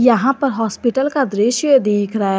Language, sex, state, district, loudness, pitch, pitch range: Hindi, female, Jharkhand, Garhwa, -16 LUFS, 240 Hz, 210-270 Hz